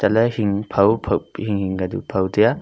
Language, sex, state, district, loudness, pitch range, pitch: Wancho, male, Arunachal Pradesh, Longding, -20 LUFS, 100-115 Hz, 105 Hz